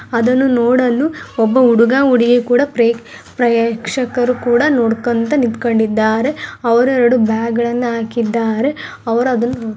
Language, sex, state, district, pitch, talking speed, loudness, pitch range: Kannada, female, Karnataka, Gulbarga, 240 Hz, 115 wpm, -14 LUFS, 230-250 Hz